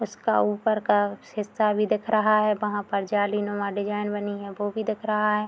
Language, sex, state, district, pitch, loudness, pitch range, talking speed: Hindi, female, Bihar, Madhepura, 210 Hz, -25 LUFS, 205-215 Hz, 210 wpm